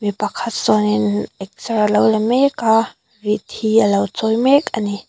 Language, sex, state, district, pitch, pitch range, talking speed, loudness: Mizo, female, Mizoram, Aizawl, 215 Hz, 210-225 Hz, 190 wpm, -17 LUFS